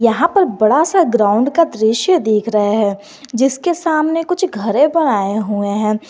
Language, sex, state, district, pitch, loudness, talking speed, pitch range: Hindi, male, Jharkhand, Garhwa, 245 Hz, -15 LUFS, 165 wpm, 215-325 Hz